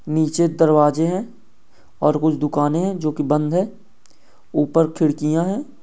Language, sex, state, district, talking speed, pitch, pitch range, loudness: Hindi, male, Goa, North and South Goa, 145 wpm, 160 Hz, 150-175 Hz, -19 LUFS